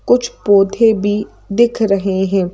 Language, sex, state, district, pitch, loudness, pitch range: Hindi, female, Madhya Pradesh, Bhopal, 205 Hz, -15 LUFS, 195-225 Hz